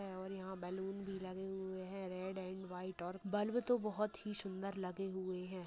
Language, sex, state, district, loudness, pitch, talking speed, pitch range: Hindi, female, Bihar, Purnia, -43 LUFS, 190 Hz, 200 wpm, 185-195 Hz